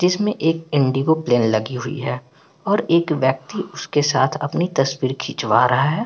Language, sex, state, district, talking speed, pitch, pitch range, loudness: Hindi, male, Bihar, Patna, 170 wpm, 145 Hz, 130-165 Hz, -19 LUFS